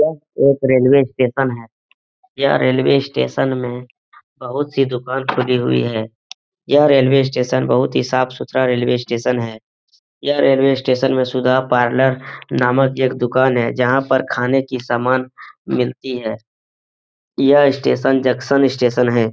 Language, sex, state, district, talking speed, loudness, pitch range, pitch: Hindi, male, Bihar, Jahanabad, 145 wpm, -16 LUFS, 125-135 Hz, 130 Hz